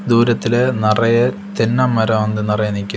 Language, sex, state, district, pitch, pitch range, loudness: Tamil, male, Tamil Nadu, Kanyakumari, 115 Hz, 105-120 Hz, -16 LUFS